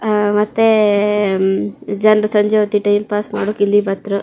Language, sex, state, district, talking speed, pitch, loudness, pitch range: Kannada, female, Karnataka, Shimoga, 140 wpm, 205 Hz, -15 LUFS, 205-210 Hz